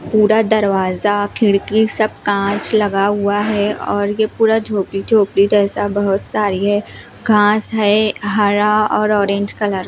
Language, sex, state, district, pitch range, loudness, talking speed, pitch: Hindi, female, Himachal Pradesh, Shimla, 200-215 Hz, -15 LUFS, 135 wpm, 205 Hz